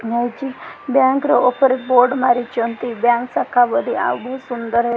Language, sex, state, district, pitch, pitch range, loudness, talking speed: Odia, female, Odisha, Khordha, 245 Hz, 235-260 Hz, -17 LUFS, 180 wpm